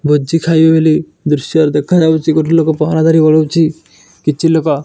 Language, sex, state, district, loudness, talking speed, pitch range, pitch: Odia, male, Odisha, Nuapada, -12 LUFS, 150 wpm, 155-160 Hz, 160 Hz